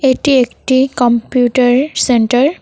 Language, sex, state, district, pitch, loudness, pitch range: Bengali, female, West Bengal, Cooch Behar, 255 Hz, -12 LUFS, 245-265 Hz